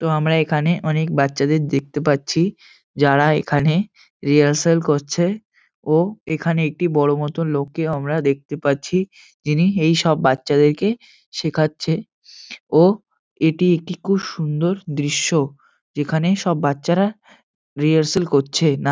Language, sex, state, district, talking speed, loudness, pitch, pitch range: Bengali, male, West Bengal, North 24 Parganas, 115 wpm, -19 LUFS, 155 Hz, 145-175 Hz